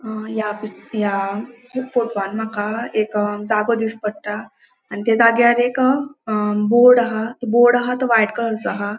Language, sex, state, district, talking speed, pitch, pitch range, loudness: Konkani, female, Goa, North and South Goa, 165 wpm, 220 Hz, 210-240 Hz, -18 LUFS